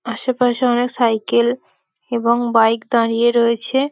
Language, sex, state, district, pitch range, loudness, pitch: Bengali, female, West Bengal, Malda, 230-245 Hz, -17 LUFS, 235 Hz